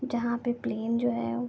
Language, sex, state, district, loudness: Hindi, female, West Bengal, Jalpaiguri, -29 LUFS